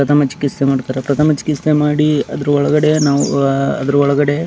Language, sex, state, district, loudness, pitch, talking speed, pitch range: Kannada, male, Karnataka, Dharwad, -15 LUFS, 145 Hz, 135 wpm, 140-150 Hz